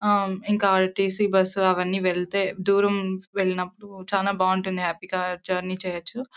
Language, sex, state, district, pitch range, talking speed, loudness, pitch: Telugu, female, Karnataka, Bellary, 185-200 Hz, 130 wpm, -24 LUFS, 190 Hz